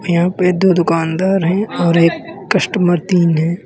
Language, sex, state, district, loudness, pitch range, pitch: Hindi, male, Uttar Pradesh, Lalitpur, -14 LUFS, 170-185 Hz, 175 Hz